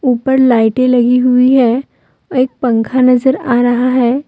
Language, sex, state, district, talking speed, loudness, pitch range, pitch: Hindi, female, Jharkhand, Deoghar, 155 wpm, -11 LUFS, 245-260 Hz, 250 Hz